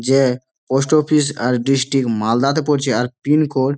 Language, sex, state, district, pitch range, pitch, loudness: Bengali, male, West Bengal, Malda, 125-145 Hz, 135 Hz, -17 LUFS